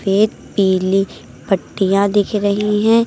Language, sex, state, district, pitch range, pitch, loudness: Hindi, female, Uttar Pradesh, Lucknow, 195-210 Hz, 200 Hz, -16 LUFS